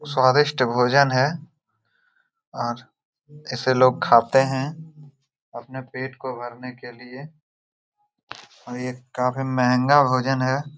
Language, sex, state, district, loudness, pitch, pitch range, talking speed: Hindi, male, Jharkhand, Jamtara, -21 LUFS, 130 Hz, 125-145 Hz, 155 wpm